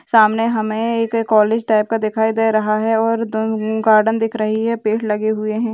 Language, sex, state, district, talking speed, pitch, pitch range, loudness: Hindi, female, Rajasthan, Churu, 200 wpm, 220 Hz, 215-225 Hz, -17 LUFS